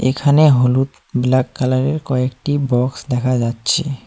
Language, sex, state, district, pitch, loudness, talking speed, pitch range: Bengali, male, West Bengal, Cooch Behar, 130 Hz, -17 LUFS, 135 wpm, 125-140 Hz